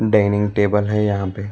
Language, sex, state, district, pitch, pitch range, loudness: Hindi, male, Karnataka, Bangalore, 105 Hz, 100-105 Hz, -18 LUFS